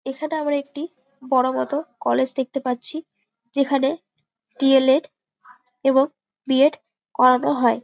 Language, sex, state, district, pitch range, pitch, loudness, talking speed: Bengali, female, West Bengal, Malda, 250-285 Hz, 265 Hz, -21 LUFS, 130 wpm